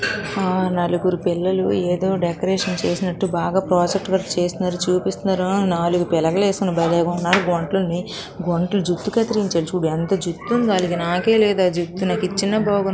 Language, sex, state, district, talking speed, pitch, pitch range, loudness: Telugu, female, Andhra Pradesh, Srikakulam, 135 wpm, 185 Hz, 175-195 Hz, -20 LUFS